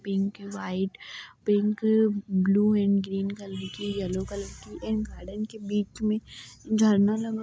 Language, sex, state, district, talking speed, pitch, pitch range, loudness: Hindi, female, Bihar, Darbhanga, 170 wpm, 205 Hz, 195-215 Hz, -27 LUFS